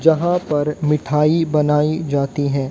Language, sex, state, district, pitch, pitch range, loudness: Hindi, female, Haryana, Jhajjar, 150 Hz, 145-155 Hz, -18 LUFS